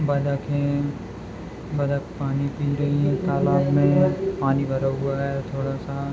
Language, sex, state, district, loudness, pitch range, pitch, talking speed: Hindi, male, Bihar, Madhepura, -23 LUFS, 140-145 Hz, 140 Hz, 145 wpm